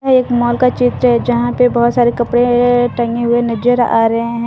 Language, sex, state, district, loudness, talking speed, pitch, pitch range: Hindi, female, Jharkhand, Deoghar, -13 LUFS, 215 wpm, 240 Hz, 235-245 Hz